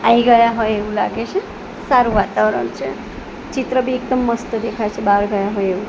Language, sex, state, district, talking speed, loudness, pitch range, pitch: Gujarati, female, Gujarat, Gandhinagar, 195 wpm, -17 LUFS, 205-250 Hz, 230 Hz